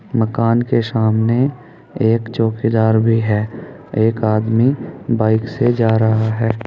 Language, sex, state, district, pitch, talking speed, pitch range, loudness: Hindi, male, Uttar Pradesh, Saharanpur, 115 Hz, 125 wpm, 110-115 Hz, -16 LUFS